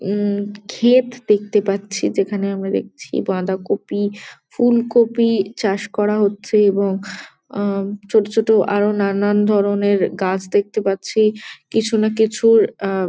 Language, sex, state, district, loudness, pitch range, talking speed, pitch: Bengali, female, West Bengal, Jalpaiguri, -18 LUFS, 200-220 Hz, 125 wpm, 205 Hz